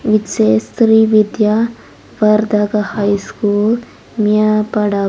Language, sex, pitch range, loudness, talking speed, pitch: English, female, 205-215 Hz, -14 LUFS, 95 wpm, 215 Hz